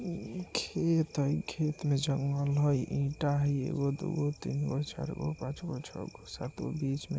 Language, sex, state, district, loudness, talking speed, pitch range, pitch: Maithili, male, Bihar, Muzaffarpur, -33 LUFS, 200 wpm, 140-160 Hz, 145 Hz